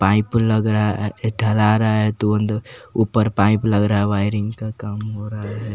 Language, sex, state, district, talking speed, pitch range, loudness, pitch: Hindi, male, Jharkhand, Garhwa, 200 wpm, 105-110 Hz, -19 LUFS, 105 Hz